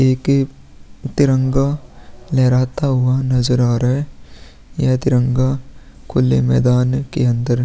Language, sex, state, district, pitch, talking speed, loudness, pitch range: Hindi, male, Bihar, Vaishali, 130 Hz, 120 wpm, -17 LUFS, 125-135 Hz